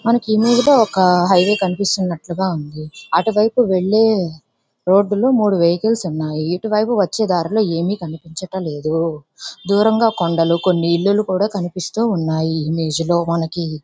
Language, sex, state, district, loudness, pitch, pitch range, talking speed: Telugu, female, Andhra Pradesh, Visakhapatnam, -17 LUFS, 185 Hz, 165-210 Hz, 120 wpm